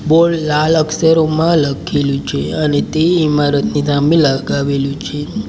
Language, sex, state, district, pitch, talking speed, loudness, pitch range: Gujarati, male, Gujarat, Valsad, 150 Hz, 120 wpm, -14 LUFS, 145-160 Hz